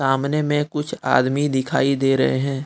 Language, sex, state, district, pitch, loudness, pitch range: Hindi, male, Jharkhand, Deoghar, 140 Hz, -20 LUFS, 135-145 Hz